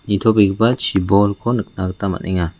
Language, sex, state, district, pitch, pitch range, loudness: Garo, male, Meghalaya, West Garo Hills, 100 Hz, 95-110 Hz, -17 LUFS